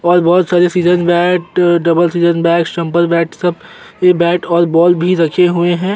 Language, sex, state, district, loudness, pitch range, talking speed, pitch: Hindi, male, Uttar Pradesh, Jyotiba Phule Nagar, -12 LUFS, 170-175 Hz, 170 wpm, 175 Hz